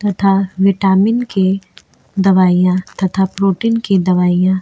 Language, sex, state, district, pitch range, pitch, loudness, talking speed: Hindi, female, Uttar Pradesh, Jyotiba Phule Nagar, 185-195 Hz, 190 Hz, -14 LUFS, 115 wpm